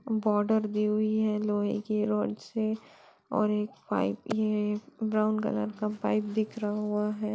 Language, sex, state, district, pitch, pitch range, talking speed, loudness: Hindi, female, Bihar, Saran, 215 Hz, 210-215 Hz, 170 wpm, -30 LUFS